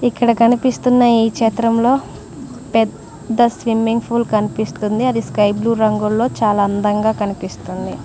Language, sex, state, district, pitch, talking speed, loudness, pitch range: Telugu, female, Telangana, Mahabubabad, 225 Hz, 110 wpm, -16 LUFS, 210-235 Hz